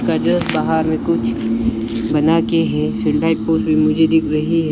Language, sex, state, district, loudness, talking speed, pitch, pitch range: Hindi, male, Arunachal Pradesh, Lower Dibang Valley, -17 LUFS, 125 wpm, 110 Hz, 80-115 Hz